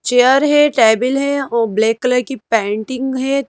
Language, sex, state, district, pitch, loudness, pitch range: Hindi, female, Madhya Pradesh, Bhopal, 250 Hz, -15 LUFS, 225-275 Hz